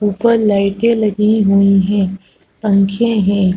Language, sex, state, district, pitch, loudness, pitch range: Hindi, female, Chhattisgarh, Rajnandgaon, 200 Hz, -14 LUFS, 195-215 Hz